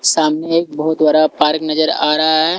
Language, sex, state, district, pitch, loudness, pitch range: Hindi, male, Delhi, New Delhi, 155 Hz, -14 LUFS, 155-160 Hz